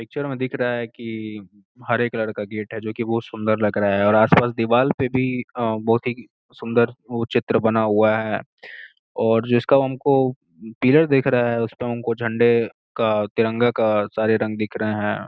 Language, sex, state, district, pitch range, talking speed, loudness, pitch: Hindi, male, Uttar Pradesh, Gorakhpur, 110-120 Hz, 195 wpm, -21 LUFS, 115 Hz